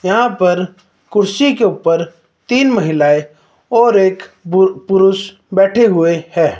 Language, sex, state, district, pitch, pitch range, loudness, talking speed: Hindi, male, Himachal Pradesh, Shimla, 190 Hz, 170-205 Hz, -13 LUFS, 120 wpm